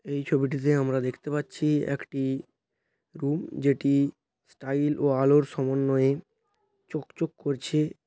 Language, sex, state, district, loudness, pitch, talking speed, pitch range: Bengali, male, West Bengal, Paschim Medinipur, -27 LUFS, 140 Hz, 105 wpm, 135-150 Hz